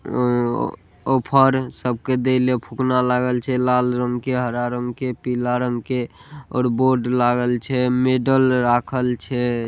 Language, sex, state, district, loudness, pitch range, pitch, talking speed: Maithili, male, Bihar, Saharsa, -20 LUFS, 125-130 Hz, 125 Hz, 150 wpm